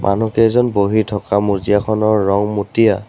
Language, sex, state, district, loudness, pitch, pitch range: Assamese, male, Assam, Sonitpur, -16 LUFS, 105 Hz, 100-110 Hz